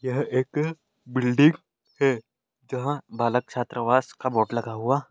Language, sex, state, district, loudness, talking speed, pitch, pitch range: Hindi, male, Chhattisgarh, Raigarh, -25 LUFS, 130 wpm, 125 Hz, 120-135 Hz